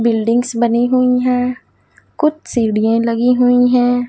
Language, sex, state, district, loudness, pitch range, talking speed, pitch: Hindi, female, Punjab, Fazilka, -14 LUFS, 235-250 Hz, 130 wpm, 245 Hz